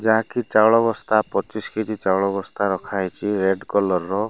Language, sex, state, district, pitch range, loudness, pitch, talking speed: Odia, male, Odisha, Malkangiri, 95-110 Hz, -21 LUFS, 105 Hz, 165 wpm